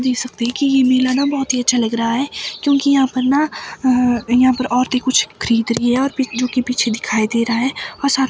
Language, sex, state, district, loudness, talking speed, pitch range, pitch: Hindi, female, Himachal Pradesh, Shimla, -17 LUFS, 255 wpm, 240-265 Hz, 255 Hz